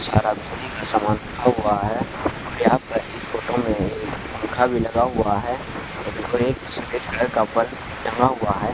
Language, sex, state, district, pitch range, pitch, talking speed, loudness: Hindi, male, Haryana, Charkhi Dadri, 105-120 Hz, 115 Hz, 125 wpm, -23 LUFS